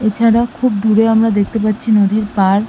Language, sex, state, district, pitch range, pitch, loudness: Bengali, female, West Bengal, Malda, 210-225 Hz, 220 Hz, -14 LUFS